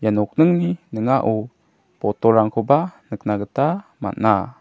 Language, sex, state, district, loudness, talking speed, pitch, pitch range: Garo, male, Meghalaya, South Garo Hills, -20 LUFS, 80 wpm, 125 Hz, 110-160 Hz